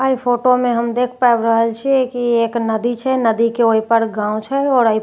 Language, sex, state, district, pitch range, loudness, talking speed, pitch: Maithili, female, Bihar, Katihar, 230-250 Hz, -16 LUFS, 310 wpm, 235 Hz